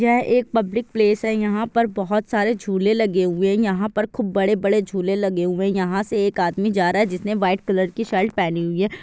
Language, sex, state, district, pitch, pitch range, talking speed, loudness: Hindi, female, Bihar, Jahanabad, 205 Hz, 190-220 Hz, 245 wpm, -20 LUFS